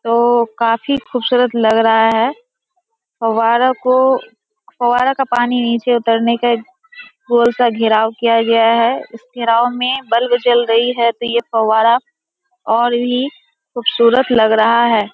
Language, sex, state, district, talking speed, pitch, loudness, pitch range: Hindi, female, Bihar, Kishanganj, 145 wpm, 240 Hz, -14 LUFS, 230-255 Hz